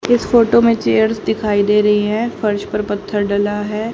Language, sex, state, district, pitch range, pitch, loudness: Hindi, female, Haryana, Jhajjar, 205-225 Hz, 210 Hz, -16 LUFS